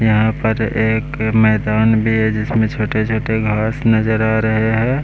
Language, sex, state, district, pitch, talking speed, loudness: Hindi, male, Bihar, West Champaran, 110 Hz, 165 wpm, -16 LUFS